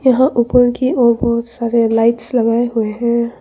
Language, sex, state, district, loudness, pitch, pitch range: Hindi, female, Arunachal Pradesh, Longding, -15 LUFS, 235 Hz, 235-245 Hz